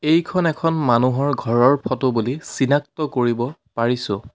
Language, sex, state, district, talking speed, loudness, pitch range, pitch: Assamese, male, Assam, Sonitpur, 125 wpm, -20 LUFS, 120-150 Hz, 130 Hz